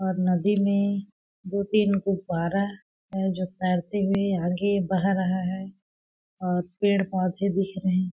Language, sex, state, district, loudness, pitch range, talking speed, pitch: Hindi, female, Chhattisgarh, Balrampur, -26 LUFS, 185-200 Hz, 140 wpm, 190 Hz